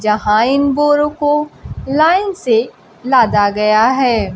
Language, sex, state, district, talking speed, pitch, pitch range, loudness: Hindi, female, Bihar, Kaimur, 125 wpm, 255 Hz, 215-295 Hz, -13 LUFS